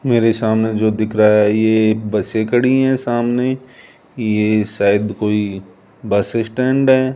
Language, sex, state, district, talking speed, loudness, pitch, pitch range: Hindi, male, Rajasthan, Jaipur, 150 wpm, -16 LUFS, 110 Hz, 105-120 Hz